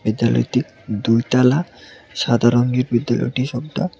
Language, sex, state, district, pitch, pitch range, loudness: Bengali, male, Tripura, West Tripura, 120 Hz, 115-125 Hz, -18 LUFS